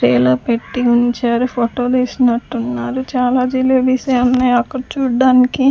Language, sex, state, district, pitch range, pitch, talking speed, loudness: Telugu, female, Andhra Pradesh, Sri Satya Sai, 240-255 Hz, 250 Hz, 125 wpm, -15 LUFS